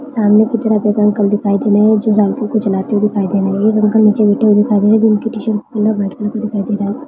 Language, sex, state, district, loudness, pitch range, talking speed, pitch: Hindi, female, Maharashtra, Nagpur, -13 LUFS, 205-220 Hz, 295 wpm, 210 Hz